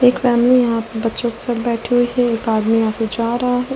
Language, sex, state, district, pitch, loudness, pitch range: Hindi, female, Delhi, New Delhi, 235 Hz, -17 LUFS, 225-245 Hz